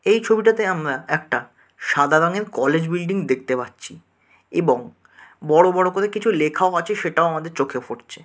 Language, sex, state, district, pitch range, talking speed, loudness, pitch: Bengali, male, West Bengal, Dakshin Dinajpur, 140-200 Hz, 155 wpm, -20 LUFS, 170 Hz